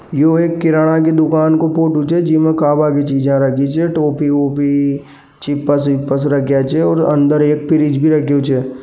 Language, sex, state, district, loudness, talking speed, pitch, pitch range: Marwari, male, Rajasthan, Nagaur, -14 LUFS, 170 wpm, 145 Hz, 140-155 Hz